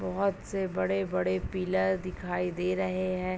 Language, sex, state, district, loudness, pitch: Hindi, female, Uttar Pradesh, Ghazipur, -30 LUFS, 180 Hz